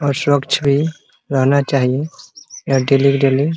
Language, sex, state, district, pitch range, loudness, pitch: Hindi, male, Bihar, Muzaffarpur, 135-145 Hz, -16 LUFS, 140 Hz